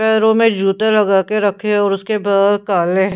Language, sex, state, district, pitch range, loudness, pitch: Hindi, female, Punjab, Pathankot, 195-215 Hz, -15 LUFS, 205 Hz